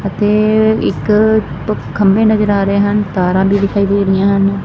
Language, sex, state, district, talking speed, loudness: Punjabi, female, Punjab, Fazilka, 170 wpm, -13 LUFS